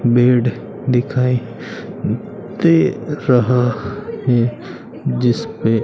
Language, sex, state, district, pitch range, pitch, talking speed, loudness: Hindi, male, Rajasthan, Bikaner, 120-135 Hz, 125 Hz, 60 wpm, -17 LUFS